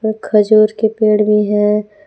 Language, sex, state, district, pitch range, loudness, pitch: Hindi, female, Jharkhand, Palamu, 210-220 Hz, -13 LUFS, 215 Hz